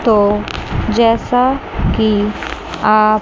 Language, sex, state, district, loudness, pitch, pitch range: Hindi, female, Chandigarh, Chandigarh, -15 LUFS, 215 Hz, 210-230 Hz